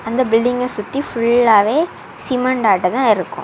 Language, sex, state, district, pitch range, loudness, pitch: Tamil, female, Tamil Nadu, Kanyakumari, 225-255 Hz, -16 LUFS, 245 Hz